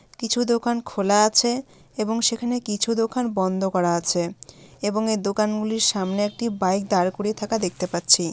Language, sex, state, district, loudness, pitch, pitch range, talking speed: Bengali, female, West Bengal, Malda, -22 LUFS, 210 Hz, 185-230 Hz, 175 wpm